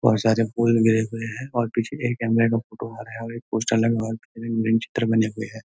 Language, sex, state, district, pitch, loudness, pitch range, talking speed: Hindi, male, Uttarakhand, Uttarkashi, 115 Hz, -23 LUFS, 110-115 Hz, 220 wpm